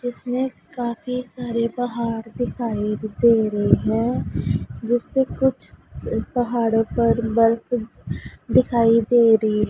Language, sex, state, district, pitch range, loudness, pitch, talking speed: Hindi, female, Punjab, Pathankot, 225-245 Hz, -21 LUFS, 235 Hz, 100 wpm